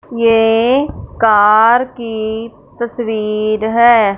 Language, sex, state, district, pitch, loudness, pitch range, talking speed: Hindi, female, Punjab, Fazilka, 225 Hz, -13 LUFS, 220-235 Hz, 70 wpm